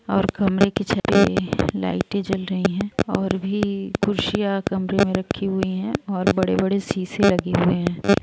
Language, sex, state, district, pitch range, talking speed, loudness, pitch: Hindi, female, Jharkhand, Sahebganj, 185-200 Hz, 165 wpm, -22 LUFS, 195 Hz